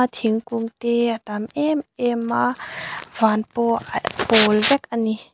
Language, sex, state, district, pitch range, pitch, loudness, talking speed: Mizo, female, Mizoram, Aizawl, 220-235 Hz, 230 Hz, -21 LUFS, 155 wpm